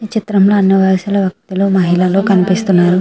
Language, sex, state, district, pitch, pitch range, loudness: Telugu, female, Andhra Pradesh, Srikakulam, 195 Hz, 185-200 Hz, -12 LUFS